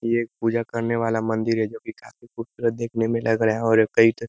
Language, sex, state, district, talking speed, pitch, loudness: Hindi, male, Uttar Pradesh, Ghazipur, 265 wpm, 115 Hz, -22 LUFS